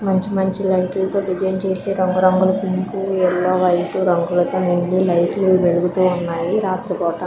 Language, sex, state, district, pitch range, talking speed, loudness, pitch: Telugu, female, Andhra Pradesh, Visakhapatnam, 180-190 Hz, 150 wpm, -18 LUFS, 185 Hz